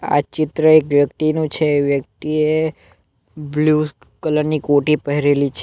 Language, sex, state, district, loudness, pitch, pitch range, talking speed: Gujarati, male, Gujarat, Navsari, -17 LUFS, 150 Hz, 145-155 Hz, 130 wpm